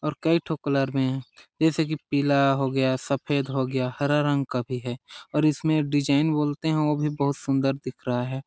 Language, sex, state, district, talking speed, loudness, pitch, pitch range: Hindi, male, Chhattisgarh, Sarguja, 220 wpm, -25 LUFS, 140 Hz, 135-150 Hz